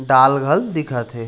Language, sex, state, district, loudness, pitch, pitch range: Chhattisgarhi, male, Chhattisgarh, Raigarh, -17 LUFS, 130 Hz, 120-140 Hz